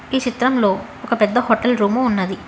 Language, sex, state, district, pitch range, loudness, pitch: Telugu, female, Telangana, Hyderabad, 205-250 Hz, -18 LUFS, 235 Hz